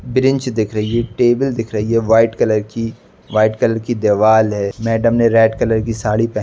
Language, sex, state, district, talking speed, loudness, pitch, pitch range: Hindi, male, Uttar Pradesh, Budaun, 215 wpm, -16 LUFS, 115 Hz, 110-115 Hz